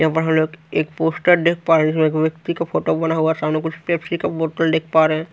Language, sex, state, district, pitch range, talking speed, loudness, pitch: Hindi, male, Haryana, Rohtak, 155-165 Hz, 250 wpm, -19 LUFS, 160 Hz